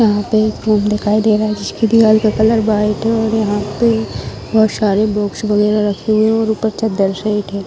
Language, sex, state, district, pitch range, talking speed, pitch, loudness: Hindi, female, Bihar, Darbhanga, 210-220 Hz, 235 wpm, 215 Hz, -15 LUFS